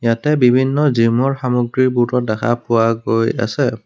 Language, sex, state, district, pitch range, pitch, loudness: Assamese, male, Assam, Kamrup Metropolitan, 115-130 Hz, 120 Hz, -16 LUFS